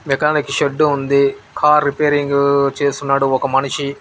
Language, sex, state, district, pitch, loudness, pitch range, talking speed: Telugu, male, Telangana, Nalgonda, 140 Hz, -16 LUFS, 140-150 Hz, 120 wpm